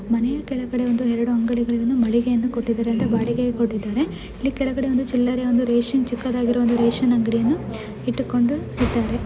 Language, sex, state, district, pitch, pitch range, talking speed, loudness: Kannada, female, Karnataka, Shimoga, 240 Hz, 235-250 Hz, 115 wpm, -21 LUFS